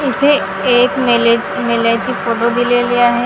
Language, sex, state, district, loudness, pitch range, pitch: Marathi, female, Maharashtra, Gondia, -13 LUFS, 235-250 Hz, 240 Hz